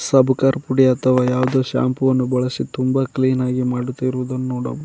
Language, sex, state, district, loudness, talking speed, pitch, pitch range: Kannada, male, Karnataka, Koppal, -19 LUFS, 160 wpm, 130 Hz, 125-130 Hz